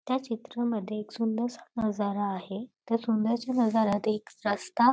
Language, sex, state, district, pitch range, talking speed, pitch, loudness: Marathi, female, Maharashtra, Dhule, 210-235 Hz, 135 wpm, 225 Hz, -30 LUFS